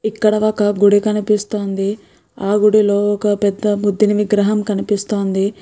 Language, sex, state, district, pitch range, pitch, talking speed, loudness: Telugu, female, Andhra Pradesh, Guntur, 205-210 Hz, 205 Hz, 120 wpm, -16 LUFS